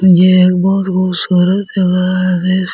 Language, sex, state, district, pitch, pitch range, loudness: Hindi, male, Delhi, New Delhi, 185 Hz, 180-190 Hz, -12 LUFS